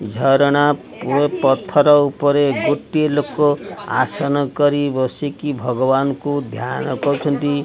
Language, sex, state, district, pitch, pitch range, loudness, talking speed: Odia, male, Odisha, Khordha, 145 Hz, 135-145 Hz, -17 LUFS, 95 wpm